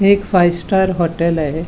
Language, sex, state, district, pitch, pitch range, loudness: Marathi, female, Goa, North and South Goa, 175 Hz, 170-190 Hz, -15 LUFS